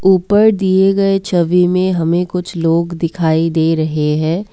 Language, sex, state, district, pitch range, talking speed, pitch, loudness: Hindi, female, Assam, Kamrup Metropolitan, 165-190 Hz, 160 wpm, 175 Hz, -14 LUFS